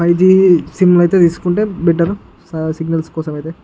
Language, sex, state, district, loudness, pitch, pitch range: Telugu, male, Andhra Pradesh, Guntur, -13 LUFS, 170 Hz, 160-185 Hz